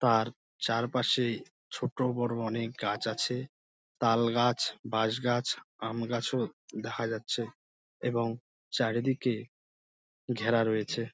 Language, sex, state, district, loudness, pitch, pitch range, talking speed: Bengali, male, West Bengal, Dakshin Dinajpur, -31 LUFS, 115 Hz, 110-120 Hz, 85 wpm